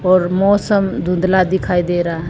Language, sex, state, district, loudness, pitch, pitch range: Hindi, female, Haryana, Jhajjar, -16 LUFS, 185 Hz, 175-190 Hz